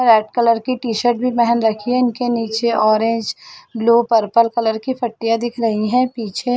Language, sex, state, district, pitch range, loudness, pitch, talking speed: Hindi, female, Chhattisgarh, Bilaspur, 225-240 Hz, -17 LUFS, 230 Hz, 165 wpm